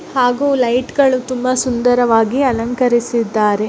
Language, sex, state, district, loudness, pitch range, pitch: Kannada, female, Karnataka, Bellary, -15 LUFS, 235-260 Hz, 245 Hz